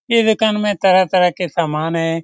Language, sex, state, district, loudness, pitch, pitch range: Hindi, male, Bihar, Lakhisarai, -16 LUFS, 185 Hz, 165-210 Hz